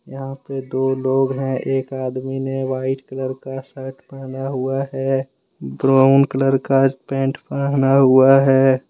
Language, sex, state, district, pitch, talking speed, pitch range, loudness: Hindi, male, Jharkhand, Deoghar, 135 Hz, 150 wpm, 130-135 Hz, -18 LUFS